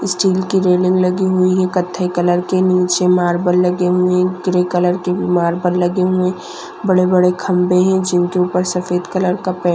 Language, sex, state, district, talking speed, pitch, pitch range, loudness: Hindi, female, Maharashtra, Nagpur, 190 wpm, 180 Hz, 180-185 Hz, -15 LUFS